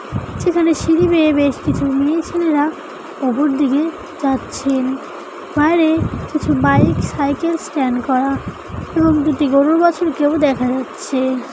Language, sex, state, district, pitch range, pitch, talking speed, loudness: Bengali, female, West Bengal, Dakshin Dinajpur, 275-330 Hz, 295 Hz, 110 wpm, -16 LUFS